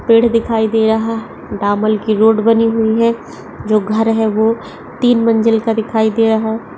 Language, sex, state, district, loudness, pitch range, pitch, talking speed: Hindi, female, Uttar Pradesh, Etah, -14 LUFS, 220-230 Hz, 225 Hz, 195 wpm